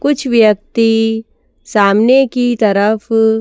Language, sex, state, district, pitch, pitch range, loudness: Hindi, female, Madhya Pradesh, Bhopal, 225 Hz, 215-245 Hz, -12 LUFS